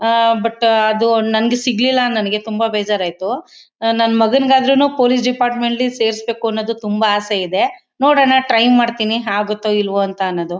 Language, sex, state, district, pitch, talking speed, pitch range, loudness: Kannada, female, Karnataka, Mysore, 225 Hz, 135 wpm, 215-245 Hz, -15 LUFS